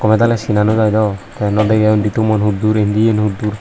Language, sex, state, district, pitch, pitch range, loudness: Chakma, female, Tripura, Unakoti, 110 Hz, 105-110 Hz, -14 LUFS